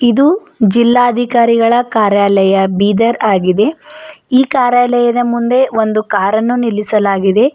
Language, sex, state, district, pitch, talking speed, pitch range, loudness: Kannada, female, Karnataka, Bidar, 235 Hz, 85 wpm, 210-245 Hz, -12 LUFS